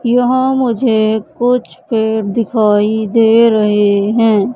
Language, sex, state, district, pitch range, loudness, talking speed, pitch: Hindi, female, Madhya Pradesh, Katni, 210-240 Hz, -13 LUFS, 105 wpm, 225 Hz